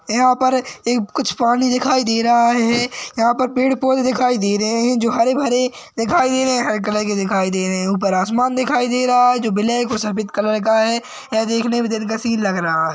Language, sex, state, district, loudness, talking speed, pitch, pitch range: Hindi, male, Chhattisgarh, Rajnandgaon, -17 LUFS, 235 wpm, 235 Hz, 215-250 Hz